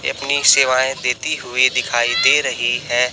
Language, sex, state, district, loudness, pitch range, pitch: Hindi, male, Chhattisgarh, Raipur, -16 LUFS, 125-135 Hz, 130 Hz